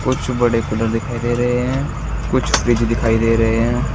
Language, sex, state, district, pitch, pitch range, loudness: Hindi, male, Uttar Pradesh, Saharanpur, 120 Hz, 115-125 Hz, -18 LUFS